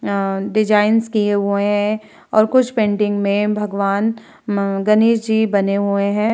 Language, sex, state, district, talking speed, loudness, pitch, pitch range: Hindi, female, Bihar, Vaishali, 160 wpm, -17 LUFS, 210 Hz, 200-215 Hz